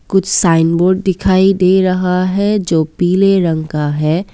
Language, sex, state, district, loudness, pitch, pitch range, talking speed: Hindi, female, Assam, Kamrup Metropolitan, -13 LUFS, 185 Hz, 165-190 Hz, 165 wpm